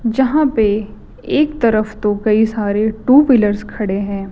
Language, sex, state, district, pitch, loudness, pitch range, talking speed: Hindi, female, Chhattisgarh, Raipur, 215 Hz, -15 LUFS, 210-255 Hz, 155 wpm